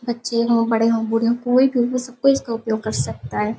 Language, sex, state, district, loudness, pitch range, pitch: Hindi, female, Uttar Pradesh, Hamirpur, -20 LUFS, 225-245 Hz, 230 Hz